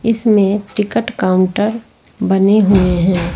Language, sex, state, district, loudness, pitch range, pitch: Hindi, female, Jharkhand, Ranchi, -14 LUFS, 185-210 Hz, 195 Hz